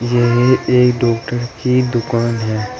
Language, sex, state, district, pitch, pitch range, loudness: Hindi, male, Uttar Pradesh, Saharanpur, 120 Hz, 115-125 Hz, -15 LUFS